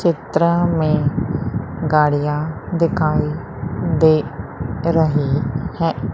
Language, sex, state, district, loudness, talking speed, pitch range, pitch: Hindi, female, Madhya Pradesh, Umaria, -19 LUFS, 70 wpm, 145-165 Hz, 155 Hz